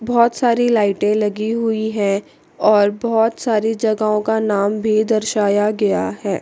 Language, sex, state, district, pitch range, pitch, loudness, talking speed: Hindi, female, Chandigarh, Chandigarh, 205-225 Hz, 215 Hz, -17 LUFS, 150 wpm